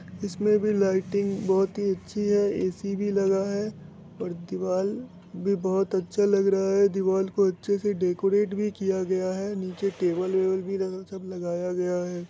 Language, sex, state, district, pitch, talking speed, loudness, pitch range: Hindi, male, Bihar, Muzaffarpur, 195 Hz, 180 wpm, -26 LUFS, 185-200 Hz